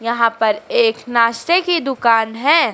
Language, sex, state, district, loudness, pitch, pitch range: Hindi, female, Madhya Pradesh, Dhar, -16 LUFS, 240 Hz, 230-335 Hz